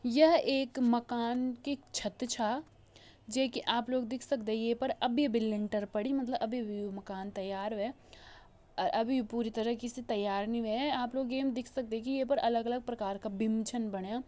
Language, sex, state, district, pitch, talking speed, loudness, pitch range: Hindi, female, Uttarakhand, Uttarkashi, 240 Hz, 180 wpm, -33 LUFS, 220-255 Hz